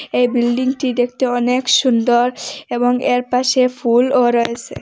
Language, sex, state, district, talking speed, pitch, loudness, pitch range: Bengali, female, Assam, Hailakandi, 125 wpm, 245 Hz, -16 LUFS, 245-255 Hz